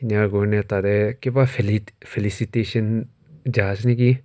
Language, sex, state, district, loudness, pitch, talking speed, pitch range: Nagamese, male, Nagaland, Kohima, -22 LUFS, 110 Hz, 100 wpm, 105-125 Hz